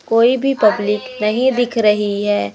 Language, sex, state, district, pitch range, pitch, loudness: Hindi, male, Madhya Pradesh, Umaria, 205-245 Hz, 215 Hz, -16 LUFS